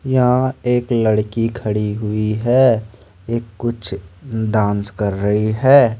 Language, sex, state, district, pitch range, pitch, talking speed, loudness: Hindi, male, Jharkhand, Deoghar, 105-120 Hz, 110 Hz, 120 wpm, -17 LUFS